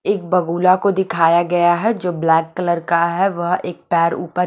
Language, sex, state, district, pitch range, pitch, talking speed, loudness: Hindi, female, Punjab, Kapurthala, 170-185 Hz, 175 Hz, 215 wpm, -17 LUFS